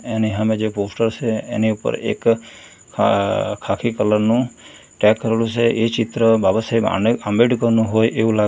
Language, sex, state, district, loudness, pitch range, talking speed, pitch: Gujarati, male, Gujarat, Valsad, -18 LUFS, 110-115 Hz, 170 wpm, 115 Hz